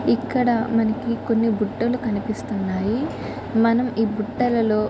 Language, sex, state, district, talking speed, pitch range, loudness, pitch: Telugu, female, Andhra Pradesh, Visakhapatnam, 110 wpm, 215-235 Hz, -22 LUFS, 225 Hz